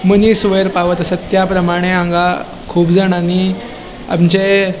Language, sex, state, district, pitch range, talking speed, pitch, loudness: Konkani, male, Goa, North and South Goa, 175-195 Hz, 135 wpm, 185 Hz, -13 LUFS